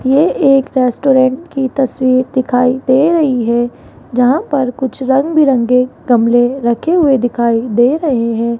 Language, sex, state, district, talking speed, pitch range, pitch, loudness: Hindi, female, Rajasthan, Jaipur, 145 wpm, 245-275 Hz, 255 Hz, -13 LUFS